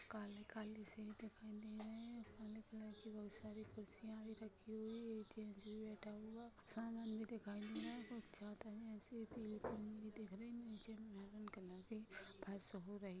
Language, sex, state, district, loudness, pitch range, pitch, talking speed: Hindi, female, Maharashtra, Pune, -53 LUFS, 210-220 Hz, 215 Hz, 175 wpm